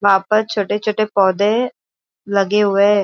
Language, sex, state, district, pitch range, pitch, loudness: Hindi, female, Maharashtra, Aurangabad, 200-215 Hz, 205 Hz, -16 LUFS